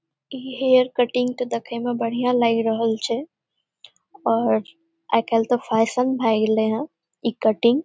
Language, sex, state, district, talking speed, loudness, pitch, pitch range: Maithili, female, Bihar, Saharsa, 160 wpm, -21 LUFS, 235 Hz, 225-255 Hz